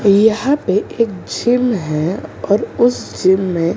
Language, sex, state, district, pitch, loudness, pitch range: Hindi, female, Maharashtra, Mumbai Suburban, 205 Hz, -16 LUFS, 185-235 Hz